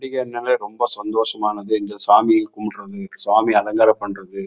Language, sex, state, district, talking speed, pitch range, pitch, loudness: Tamil, male, Karnataka, Chamarajanagar, 135 wpm, 105-125 Hz, 110 Hz, -19 LUFS